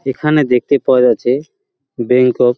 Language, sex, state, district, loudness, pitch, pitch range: Bengali, male, West Bengal, Paschim Medinipur, -13 LUFS, 125 Hz, 125-150 Hz